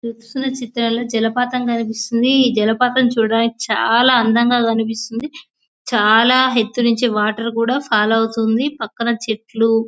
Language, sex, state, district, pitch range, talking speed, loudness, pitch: Telugu, female, Telangana, Nalgonda, 225-245 Hz, 115 wpm, -16 LUFS, 230 Hz